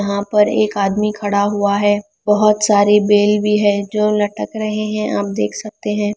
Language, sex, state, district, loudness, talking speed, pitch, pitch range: Hindi, female, Bihar, Kaimur, -16 LUFS, 195 wpm, 210 Hz, 200-210 Hz